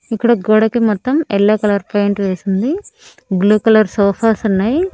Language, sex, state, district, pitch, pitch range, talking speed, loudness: Telugu, female, Andhra Pradesh, Annamaya, 215 Hz, 200-235 Hz, 135 wpm, -14 LUFS